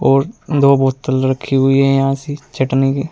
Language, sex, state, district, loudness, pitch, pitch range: Hindi, male, Uttar Pradesh, Saharanpur, -15 LUFS, 135 Hz, 135-140 Hz